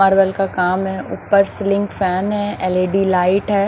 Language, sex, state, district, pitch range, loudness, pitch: Hindi, female, Haryana, Rohtak, 185-200 Hz, -17 LUFS, 195 Hz